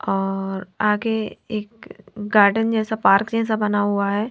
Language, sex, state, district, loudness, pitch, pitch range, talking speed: Hindi, female, Bihar, Patna, -20 LUFS, 210 Hz, 200-220 Hz, 155 wpm